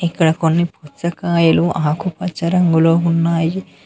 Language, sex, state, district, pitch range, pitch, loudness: Telugu, male, Telangana, Mahabubabad, 165-175 Hz, 170 Hz, -16 LUFS